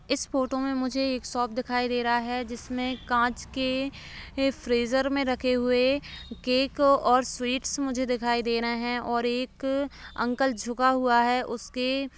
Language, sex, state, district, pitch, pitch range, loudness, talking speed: Hindi, female, Bihar, Begusarai, 255 Hz, 240-265 Hz, -27 LUFS, 165 wpm